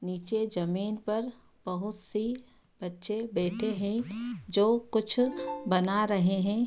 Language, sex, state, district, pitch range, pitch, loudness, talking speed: Hindi, female, Bihar, Darbhanga, 185-225 Hz, 210 Hz, -30 LUFS, 125 wpm